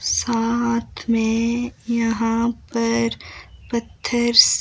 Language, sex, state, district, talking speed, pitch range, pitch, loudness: Hindi, female, Himachal Pradesh, Shimla, 65 wpm, 230-235 Hz, 230 Hz, -20 LUFS